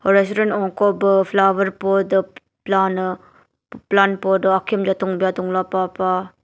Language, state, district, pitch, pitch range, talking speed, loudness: Nyishi, Arunachal Pradesh, Papum Pare, 190 Hz, 185-195 Hz, 120 wpm, -18 LUFS